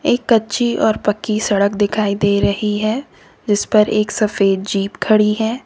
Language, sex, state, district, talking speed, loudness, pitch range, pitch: Hindi, female, Uttar Pradesh, Lalitpur, 170 wpm, -16 LUFS, 205-220 Hz, 210 Hz